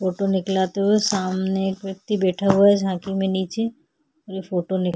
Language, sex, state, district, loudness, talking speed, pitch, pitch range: Hindi, female, Chhattisgarh, Kabirdham, -21 LUFS, 180 wpm, 195 Hz, 190-200 Hz